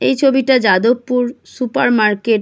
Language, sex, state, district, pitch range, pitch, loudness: Bengali, female, West Bengal, Kolkata, 230-260 Hz, 245 Hz, -15 LUFS